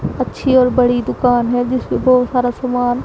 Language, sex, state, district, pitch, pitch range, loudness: Hindi, female, Punjab, Pathankot, 250 Hz, 245-255 Hz, -15 LUFS